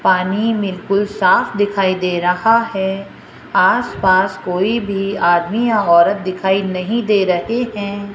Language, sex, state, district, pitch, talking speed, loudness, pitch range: Hindi, female, Rajasthan, Jaipur, 195 Hz, 140 wpm, -16 LUFS, 185-210 Hz